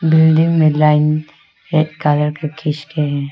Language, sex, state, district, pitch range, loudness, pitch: Hindi, female, Arunachal Pradesh, Lower Dibang Valley, 150-160 Hz, -15 LUFS, 155 Hz